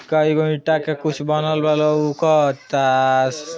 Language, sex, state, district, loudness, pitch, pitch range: Bhojpuri, male, Uttar Pradesh, Ghazipur, -18 LUFS, 155 Hz, 145-155 Hz